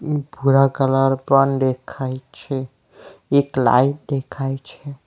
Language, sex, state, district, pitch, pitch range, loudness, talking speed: Gujarati, male, Gujarat, Valsad, 135 Hz, 130-140 Hz, -19 LUFS, 105 wpm